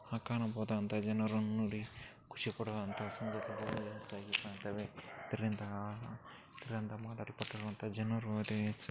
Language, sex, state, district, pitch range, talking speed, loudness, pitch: Kannada, male, Karnataka, Chamarajanagar, 105-110 Hz, 95 wpm, -41 LUFS, 110 Hz